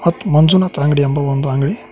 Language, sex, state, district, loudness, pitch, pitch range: Kannada, male, Karnataka, Koppal, -14 LUFS, 145 Hz, 140-175 Hz